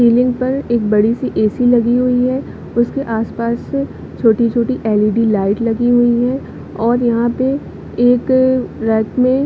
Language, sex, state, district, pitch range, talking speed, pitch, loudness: Hindi, female, Chhattisgarh, Bilaspur, 225-255 Hz, 145 wpm, 240 Hz, -15 LUFS